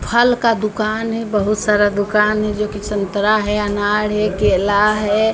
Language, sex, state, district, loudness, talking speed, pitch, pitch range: Hindi, female, Bihar, Patna, -17 LUFS, 180 wpm, 210 Hz, 205-215 Hz